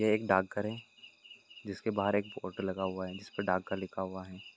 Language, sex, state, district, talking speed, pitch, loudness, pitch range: Hindi, male, Bihar, Purnia, 210 wpm, 95 Hz, -35 LUFS, 95-105 Hz